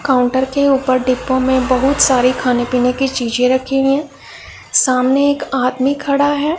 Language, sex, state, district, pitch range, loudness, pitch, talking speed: Hindi, female, Punjab, Pathankot, 255-280 Hz, -15 LUFS, 260 Hz, 165 wpm